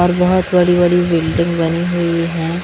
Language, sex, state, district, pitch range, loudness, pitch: Hindi, female, Haryana, Rohtak, 170-175 Hz, -15 LUFS, 175 Hz